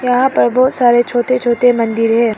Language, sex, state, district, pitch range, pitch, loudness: Hindi, female, Arunachal Pradesh, Papum Pare, 235-250 Hz, 240 Hz, -13 LUFS